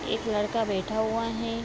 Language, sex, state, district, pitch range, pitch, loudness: Hindi, female, Bihar, Vaishali, 215-230 Hz, 225 Hz, -28 LUFS